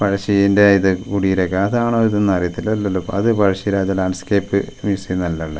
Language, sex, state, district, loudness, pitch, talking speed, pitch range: Malayalam, male, Kerala, Wayanad, -17 LUFS, 100 Hz, 150 wpm, 95-100 Hz